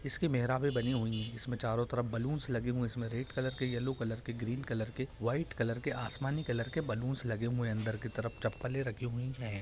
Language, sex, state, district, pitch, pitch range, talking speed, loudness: Hindi, male, Bihar, Purnia, 120 Hz, 115-130 Hz, 270 wpm, -36 LUFS